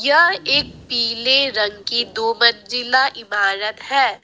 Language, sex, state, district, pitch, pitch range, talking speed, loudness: Hindi, female, Assam, Sonitpur, 235 Hz, 215-265 Hz, 125 wpm, -17 LUFS